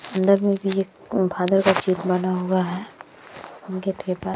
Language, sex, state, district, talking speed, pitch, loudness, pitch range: Hindi, female, Uttar Pradesh, Jyotiba Phule Nagar, 140 wpm, 190 Hz, -22 LUFS, 185-195 Hz